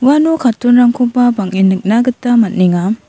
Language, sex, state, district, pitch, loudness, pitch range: Garo, female, Meghalaya, South Garo Hills, 240 Hz, -12 LUFS, 200-250 Hz